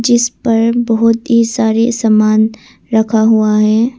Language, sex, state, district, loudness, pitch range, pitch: Hindi, female, Arunachal Pradesh, Papum Pare, -12 LUFS, 220-235 Hz, 225 Hz